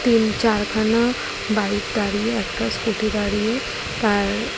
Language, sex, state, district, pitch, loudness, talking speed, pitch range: Bengali, female, West Bengal, Jalpaiguri, 215 Hz, -21 LUFS, 120 wpm, 205-225 Hz